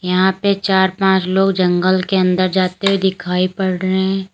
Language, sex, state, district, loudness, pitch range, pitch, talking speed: Hindi, female, Uttar Pradesh, Lalitpur, -16 LUFS, 185-195 Hz, 190 Hz, 195 wpm